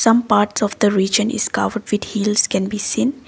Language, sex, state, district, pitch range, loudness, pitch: English, female, Assam, Kamrup Metropolitan, 205-230 Hz, -18 LUFS, 210 Hz